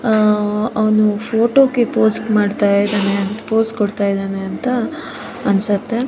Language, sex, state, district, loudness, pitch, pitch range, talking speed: Kannada, female, Karnataka, Shimoga, -16 LUFS, 215 Hz, 205-225 Hz, 110 wpm